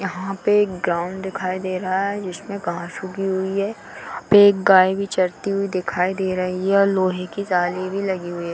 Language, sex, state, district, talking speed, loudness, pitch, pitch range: Hindi, female, Bihar, Darbhanga, 225 wpm, -20 LUFS, 190 Hz, 185-200 Hz